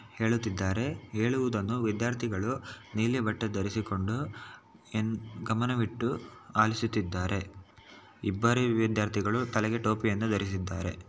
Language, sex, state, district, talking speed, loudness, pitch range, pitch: Kannada, male, Karnataka, Shimoga, 75 wpm, -31 LUFS, 105-115 Hz, 110 Hz